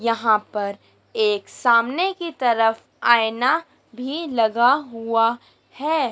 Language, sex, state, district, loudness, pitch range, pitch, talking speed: Hindi, female, Madhya Pradesh, Dhar, -20 LUFS, 225-315 Hz, 240 Hz, 110 wpm